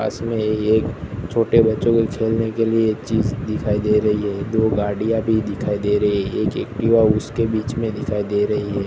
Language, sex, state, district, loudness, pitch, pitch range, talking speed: Hindi, male, Gujarat, Gandhinagar, -20 LUFS, 110 Hz, 105-115 Hz, 215 wpm